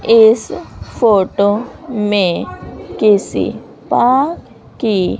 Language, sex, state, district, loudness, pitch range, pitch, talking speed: Hindi, female, Haryana, Rohtak, -14 LUFS, 205-235 Hz, 215 Hz, 70 wpm